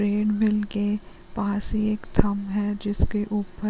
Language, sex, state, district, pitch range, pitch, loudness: Hindi, female, Uttarakhand, Uttarkashi, 205-210 Hz, 205 Hz, -25 LUFS